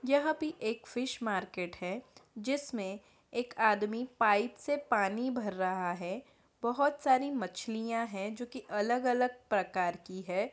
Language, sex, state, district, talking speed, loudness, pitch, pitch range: Hindi, female, Bihar, Samastipur, 150 wpm, -33 LUFS, 230 Hz, 195-255 Hz